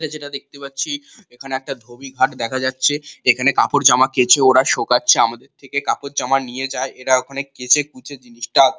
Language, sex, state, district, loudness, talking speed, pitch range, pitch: Bengali, male, West Bengal, Kolkata, -17 LUFS, 165 wpm, 130-140 Hz, 135 Hz